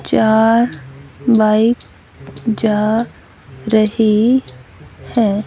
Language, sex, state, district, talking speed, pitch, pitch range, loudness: Hindi, female, Haryana, Jhajjar, 55 wpm, 220 Hz, 215-230 Hz, -15 LUFS